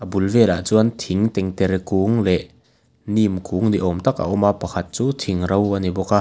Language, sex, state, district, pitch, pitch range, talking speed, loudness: Mizo, male, Mizoram, Aizawl, 95 Hz, 90-110 Hz, 215 wpm, -20 LUFS